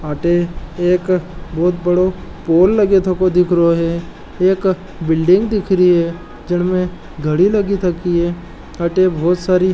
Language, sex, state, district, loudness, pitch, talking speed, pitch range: Marwari, male, Rajasthan, Nagaur, -16 LUFS, 180 Hz, 135 wpm, 170-185 Hz